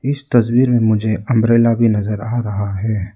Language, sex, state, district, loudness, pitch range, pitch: Hindi, male, Arunachal Pradesh, Lower Dibang Valley, -16 LUFS, 105-120 Hz, 115 Hz